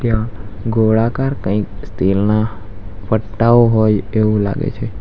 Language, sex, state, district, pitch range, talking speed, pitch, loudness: Gujarati, male, Gujarat, Valsad, 100-115 Hz, 95 wpm, 110 Hz, -16 LUFS